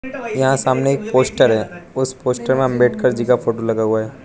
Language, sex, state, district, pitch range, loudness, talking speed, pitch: Hindi, male, Arunachal Pradesh, Lower Dibang Valley, 120-130 Hz, -17 LUFS, 210 wpm, 130 Hz